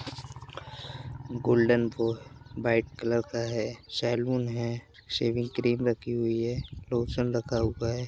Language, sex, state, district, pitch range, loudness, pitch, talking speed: Hindi, male, Uttar Pradesh, Jyotiba Phule Nagar, 115-125 Hz, -29 LUFS, 120 Hz, 120 wpm